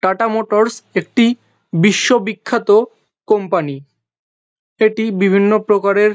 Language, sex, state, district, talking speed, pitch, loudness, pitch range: Bengali, male, West Bengal, North 24 Parganas, 95 wpm, 210 Hz, -15 LUFS, 195-225 Hz